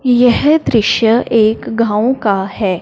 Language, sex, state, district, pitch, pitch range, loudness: Hindi, female, Punjab, Fazilka, 225 Hz, 210-245 Hz, -13 LUFS